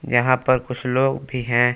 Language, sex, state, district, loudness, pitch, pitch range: Hindi, male, Jharkhand, Palamu, -20 LUFS, 125 Hz, 125-130 Hz